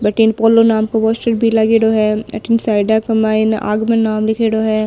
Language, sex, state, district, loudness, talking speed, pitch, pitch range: Marwari, female, Rajasthan, Nagaur, -14 LUFS, 195 wpm, 220 Hz, 215-225 Hz